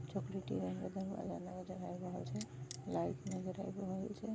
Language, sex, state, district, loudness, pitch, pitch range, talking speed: Maithili, female, Bihar, Vaishali, -44 LUFS, 180 Hz, 125-190 Hz, 70 wpm